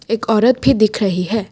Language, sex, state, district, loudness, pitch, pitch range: Hindi, female, Assam, Kamrup Metropolitan, -15 LUFS, 225 Hz, 210-230 Hz